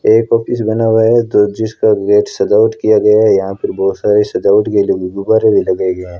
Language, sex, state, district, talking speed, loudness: Hindi, female, Rajasthan, Bikaner, 240 wpm, -12 LUFS